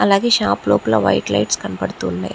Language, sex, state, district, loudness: Telugu, female, Andhra Pradesh, Chittoor, -17 LUFS